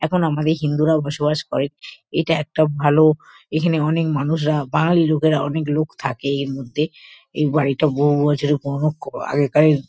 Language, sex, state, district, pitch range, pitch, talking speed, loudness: Bengali, female, West Bengal, Kolkata, 145-155 Hz, 150 Hz, 160 wpm, -19 LUFS